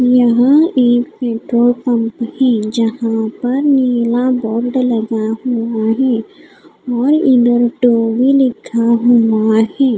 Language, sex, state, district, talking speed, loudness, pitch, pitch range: Hindi, female, Odisha, Khordha, 100 wpm, -14 LUFS, 240 Hz, 230-255 Hz